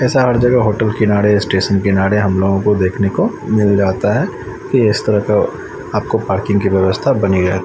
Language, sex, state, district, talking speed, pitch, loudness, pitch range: Hindi, male, Chandigarh, Chandigarh, 195 wpm, 100 Hz, -14 LUFS, 95-110 Hz